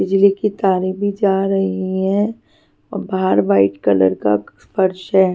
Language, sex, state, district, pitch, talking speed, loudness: Hindi, female, Punjab, Pathankot, 190 Hz, 155 wpm, -17 LUFS